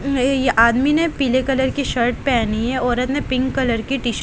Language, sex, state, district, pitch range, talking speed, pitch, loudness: Hindi, female, Haryana, Jhajjar, 240-270 Hz, 240 wpm, 260 Hz, -18 LUFS